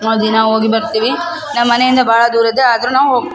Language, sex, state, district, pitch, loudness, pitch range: Kannada, female, Karnataka, Raichur, 235 Hz, -12 LUFS, 225-255 Hz